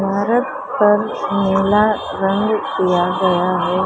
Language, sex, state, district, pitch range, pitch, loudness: Hindi, female, Maharashtra, Mumbai Suburban, 185-210 Hz, 195 Hz, -17 LUFS